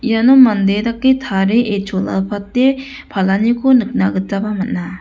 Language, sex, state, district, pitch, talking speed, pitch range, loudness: Garo, female, Meghalaya, West Garo Hills, 210 Hz, 120 wpm, 195-250 Hz, -15 LUFS